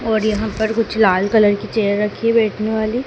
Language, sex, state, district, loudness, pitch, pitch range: Hindi, male, Madhya Pradesh, Dhar, -17 LUFS, 220 Hz, 210-225 Hz